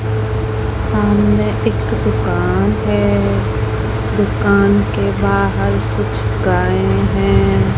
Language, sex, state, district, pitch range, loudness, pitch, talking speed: Hindi, female, Rajasthan, Jaisalmer, 100-110 Hz, -15 LUFS, 105 Hz, 75 wpm